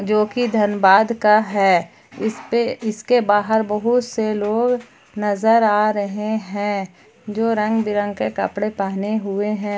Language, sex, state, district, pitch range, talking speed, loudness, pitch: Hindi, female, Jharkhand, Palamu, 205-225 Hz, 135 wpm, -19 LUFS, 215 Hz